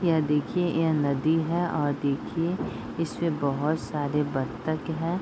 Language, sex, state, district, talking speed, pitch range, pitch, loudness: Hindi, female, Bihar, Bhagalpur, 140 wpm, 145-165 Hz, 155 Hz, -27 LUFS